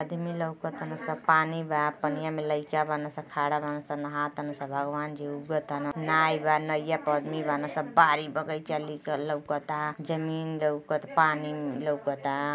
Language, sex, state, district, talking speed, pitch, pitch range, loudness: Hindi, female, Uttar Pradesh, Deoria, 165 wpm, 150 Hz, 145-155 Hz, -29 LUFS